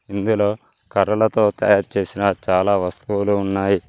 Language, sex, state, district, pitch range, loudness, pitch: Telugu, male, Telangana, Mahabubabad, 100-105 Hz, -19 LUFS, 100 Hz